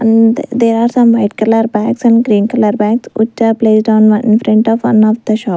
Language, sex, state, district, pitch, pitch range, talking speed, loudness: English, female, Punjab, Fazilka, 225 Hz, 215-230 Hz, 225 wpm, -11 LUFS